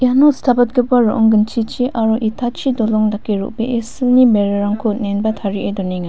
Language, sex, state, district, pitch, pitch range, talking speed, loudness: Garo, female, Meghalaya, West Garo Hills, 225 Hz, 210-245 Hz, 140 wpm, -16 LUFS